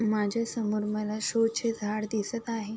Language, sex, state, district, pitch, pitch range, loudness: Marathi, female, Maharashtra, Sindhudurg, 220 Hz, 210-230 Hz, -30 LUFS